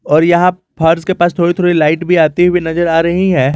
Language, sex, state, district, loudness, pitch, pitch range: Hindi, male, Jharkhand, Garhwa, -12 LUFS, 170 Hz, 165-180 Hz